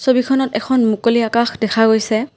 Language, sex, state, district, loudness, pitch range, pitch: Assamese, female, Assam, Kamrup Metropolitan, -16 LUFS, 220-255 Hz, 230 Hz